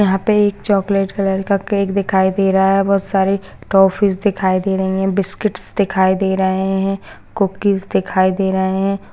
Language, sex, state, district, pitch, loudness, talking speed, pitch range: Hindi, female, Maharashtra, Sindhudurg, 195 Hz, -16 LUFS, 185 wpm, 190-200 Hz